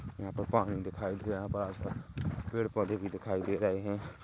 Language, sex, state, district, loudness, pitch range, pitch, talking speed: Hindi, male, Chhattisgarh, Kabirdham, -35 LUFS, 95-105 Hz, 100 Hz, 225 wpm